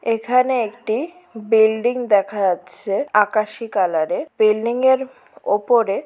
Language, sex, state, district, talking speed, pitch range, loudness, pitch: Bengali, female, West Bengal, Purulia, 120 wpm, 210-250 Hz, -19 LUFS, 220 Hz